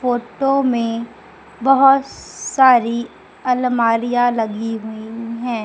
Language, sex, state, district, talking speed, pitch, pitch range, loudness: Hindi, female, Madhya Pradesh, Umaria, 85 wpm, 240 Hz, 230-255 Hz, -17 LUFS